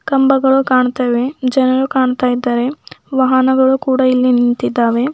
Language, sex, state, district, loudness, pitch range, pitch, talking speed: Kannada, female, Karnataka, Bidar, -14 LUFS, 250-265 Hz, 260 Hz, 105 wpm